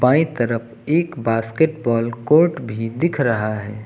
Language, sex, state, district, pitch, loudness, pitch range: Hindi, male, Uttar Pradesh, Lucknow, 120 Hz, -19 LUFS, 115-155 Hz